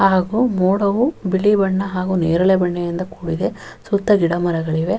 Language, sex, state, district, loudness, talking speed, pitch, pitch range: Kannada, female, Karnataka, Raichur, -18 LUFS, 145 wpm, 190 Hz, 175-200 Hz